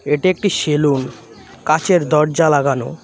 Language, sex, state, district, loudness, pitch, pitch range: Bengali, male, Tripura, West Tripura, -16 LUFS, 150 Hz, 140-165 Hz